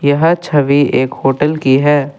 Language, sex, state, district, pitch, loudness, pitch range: Hindi, male, Assam, Kamrup Metropolitan, 145 Hz, -12 LUFS, 135-150 Hz